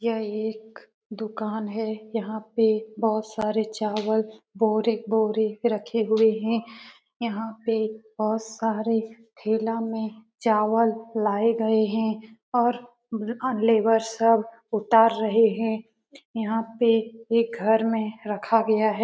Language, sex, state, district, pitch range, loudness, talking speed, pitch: Hindi, female, Bihar, Lakhisarai, 220-225 Hz, -25 LUFS, 125 wpm, 220 Hz